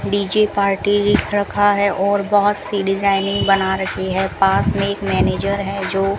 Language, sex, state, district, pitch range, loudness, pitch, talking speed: Hindi, female, Rajasthan, Bikaner, 195-205 Hz, -17 LUFS, 200 Hz, 175 wpm